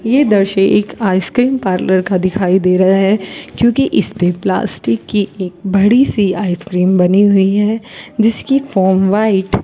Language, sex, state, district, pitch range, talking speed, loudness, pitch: Hindi, female, Rajasthan, Bikaner, 185-215 Hz, 160 wpm, -13 LUFS, 195 Hz